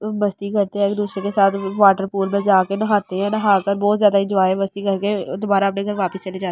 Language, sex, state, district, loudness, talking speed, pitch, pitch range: Hindi, male, Delhi, New Delhi, -19 LUFS, 240 wpm, 200 Hz, 195-205 Hz